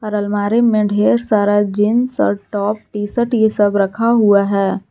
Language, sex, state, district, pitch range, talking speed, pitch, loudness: Hindi, female, Jharkhand, Garhwa, 205-220 Hz, 185 wpm, 210 Hz, -15 LUFS